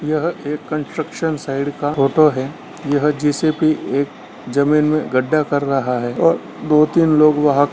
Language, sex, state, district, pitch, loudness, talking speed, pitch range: Hindi, male, Bihar, Gaya, 150 Hz, -17 LUFS, 165 wpm, 140-155 Hz